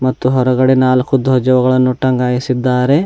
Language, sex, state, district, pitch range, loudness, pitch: Kannada, male, Karnataka, Bidar, 125-130 Hz, -13 LUFS, 130 Hz